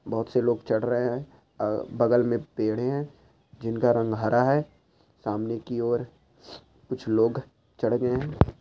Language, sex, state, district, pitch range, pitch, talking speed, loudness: Hindi, male, Chhattisgarh, Korba, 115-125 Hz, 120 Hz, 155 wpm, -26 LUFS